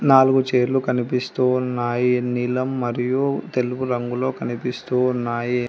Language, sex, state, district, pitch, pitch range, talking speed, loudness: Telugu, female, Telangana, Hyderabad, 125 Hz, 125-130 Hz, 105 wpm, -21 LUFS